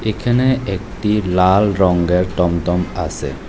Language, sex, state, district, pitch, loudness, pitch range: Bengali, male, Tripura, West Tripura, 95 Hz, -17 LUFS, 90-105 Hz